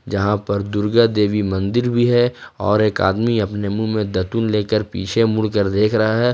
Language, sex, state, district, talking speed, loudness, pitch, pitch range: Hindi, male, Jharkhand, Ranchi, 190 wpm, -18 LUFS, 105 Hz, 100-115 Hz